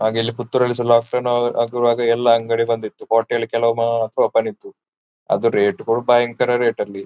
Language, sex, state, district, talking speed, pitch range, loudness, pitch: Kannada, male, Karnataka, Dakshina Kannada, 195 wpm, 115-120 Hz, -18 LUFS, 115 Hz